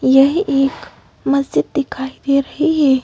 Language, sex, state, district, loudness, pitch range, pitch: Hindi, female, Madhya Pradesh, Bhopal, -16 LUFS, 270-300 Hz, 275 Hz